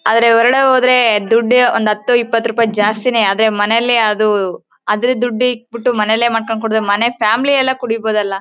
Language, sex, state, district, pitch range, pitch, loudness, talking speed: Kannada, female, Karnataka, Bellary, 215-245 Hz, 230 Hz, -13 LUFS, 165 wpm